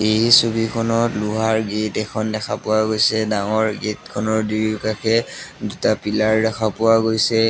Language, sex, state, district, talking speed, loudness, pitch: Assamese, male, Assam, Sonitpur, 130 wpm, -19 LUFS, 110 Hz